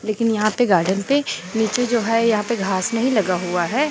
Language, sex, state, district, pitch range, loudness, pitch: Hindi, female, Chhattisgarh, Raipur, 190-235 Hz, -19 LUFS, 220 Hz